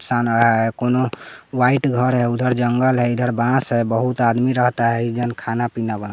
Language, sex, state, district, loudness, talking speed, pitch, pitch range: Hindi, male, Bihar, West Champaran, -18 LUFS, 185 wpm, 120 Hz, 115-125 Hz